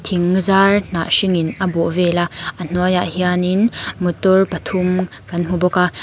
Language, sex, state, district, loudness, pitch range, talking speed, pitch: Mizo, female, Mizoram, Aizawl, -17 LUFS, 175-190 Hz, 170 wpm, 180 Hz